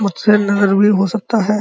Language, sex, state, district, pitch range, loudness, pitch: Hindi, male, Uttar Pradesh, Muzaffarnagar, 200-210 Hz, -14 LUFS, 205 Hz